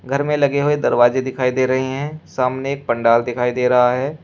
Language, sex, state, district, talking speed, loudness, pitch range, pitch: Hindi, male, Uttar Pradesh, Shamli, 225 wpm, -18 LUFS, 125-140 Hz, 130 Hz